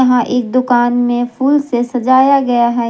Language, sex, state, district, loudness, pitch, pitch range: Hindi, female, Jharkhand, Garhwa, -13 LUFS, 245 Hz, 240-260 Hz